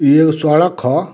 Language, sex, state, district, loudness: Bhojpuri, male, Bihar, Muzaffarpur, -13 LUFS